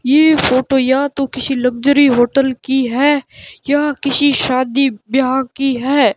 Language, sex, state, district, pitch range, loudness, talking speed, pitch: Hindi, male, Rajasthan, Bikaner, 255-280 Hz, -14 LUFS, 145 wpm, 270 Hz